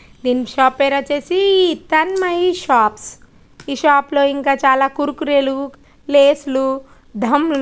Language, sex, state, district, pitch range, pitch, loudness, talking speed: Telugu, female, Telangana, Nalgonda, 270-300 Hz, 280 Hz, -16 LUFS, 135 wpm